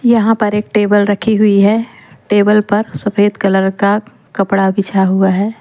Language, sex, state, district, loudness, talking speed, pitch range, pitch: Hindi, female, Madhya Pradesh, Umaria, -13 LUFS, 180 wpm, 200-210 Hz, 205 Hz